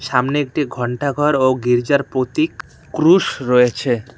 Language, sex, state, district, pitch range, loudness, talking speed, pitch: Bengali, male, West Bengal, Cooch Behar, 125-145 Hz, -17 LUFS, 115 wpm, 130 Hz